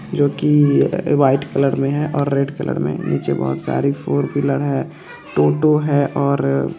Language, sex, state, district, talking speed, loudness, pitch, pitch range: Hindi, male, Bihar, Purnia, 185 wpm, -18 LUFS, 140 Hz, 135-145 Hz